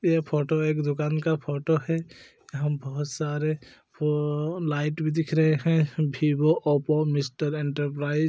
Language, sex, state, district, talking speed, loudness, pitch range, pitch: Hindi, male, Chhattisgarh, Korba, 150 wpm, -26 LUFS, 145-155 Hz, 150 Hz